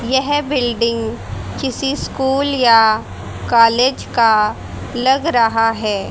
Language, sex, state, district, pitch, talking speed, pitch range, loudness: Hindi, female, Haryana, Jhajjar, 240 Hz, 100 wpm, 225-265 Hz, -15 LUFS